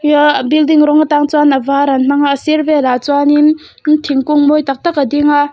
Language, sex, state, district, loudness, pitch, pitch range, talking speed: Mizo, female, Mizoram, Aizawl, -11 LUFS, 295 Hz, 280-300 Hz, 240 wpm